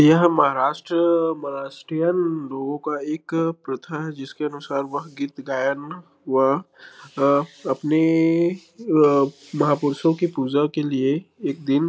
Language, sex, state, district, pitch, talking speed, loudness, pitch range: Hindi, male, Chhattisgarh, Bilaspur, 150 Hz, 115 wpm, -22 LUFS, 140-165 Hz